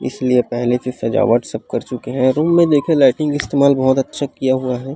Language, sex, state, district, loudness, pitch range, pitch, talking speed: Chhattisgarhi, female, Chhattisgarh, Rajnandgaon, -16 LUFS, 125-145 Hz, 130 Hz, 205 wpm